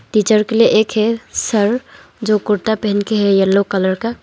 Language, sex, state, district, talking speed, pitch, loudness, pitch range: Hindi, female, Arunachal Pradesh, Longding, 200 wpm, 215 Hz, -15 LUFS, 205-225 Hz